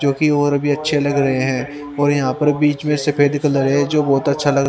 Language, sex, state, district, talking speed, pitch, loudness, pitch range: Hindi, male, Haryana, Rohtak, 245 wpm, 145 Hz, -17 LUFS, 140-145 Hz